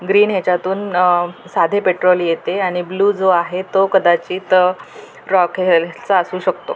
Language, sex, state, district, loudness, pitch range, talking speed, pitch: Marathi, female, Maharashtra, Pune, -16 LUFS, 175-195 Hz, 150 wpm, 185 Hz